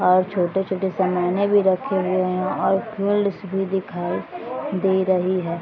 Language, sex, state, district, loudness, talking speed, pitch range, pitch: Hindi, female, Bihar, East Champaran, -22 LUFS, 140 wpm, 185-195 Hz, 190 Hz